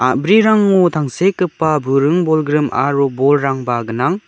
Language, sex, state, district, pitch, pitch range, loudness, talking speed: Garo, male, Meghalaya, West Garo Hills, 150 Hz, 135-180 Hz, -14 LUFS, 100 wpm